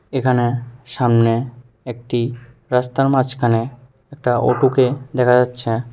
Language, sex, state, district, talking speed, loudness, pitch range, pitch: Bengali, male, Tripura, West Tripura, 100 wpm, -18 LUFS, 120-130 Hz, 125 Hz